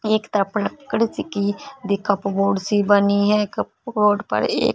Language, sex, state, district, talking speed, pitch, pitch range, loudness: Hindi, female, Punjab, Fazilka, 90 wpm, 205 Hz, 200-215 Hz, -20 LUFS